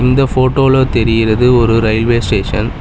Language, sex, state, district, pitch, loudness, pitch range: Tamil, male, Tamil Nadu, Chennai, 120 Hz, -12 LUFS, 115-130 Hz